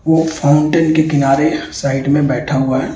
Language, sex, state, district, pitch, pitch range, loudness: Hindi, male, Delhi, New Delhi, 145 Hz, 140-155 Hz, -14 LUFS